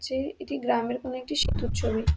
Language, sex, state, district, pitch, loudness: Bengali, female, West Bengal, Dakshin Dinajpur, 235 Hz, -29 LUFS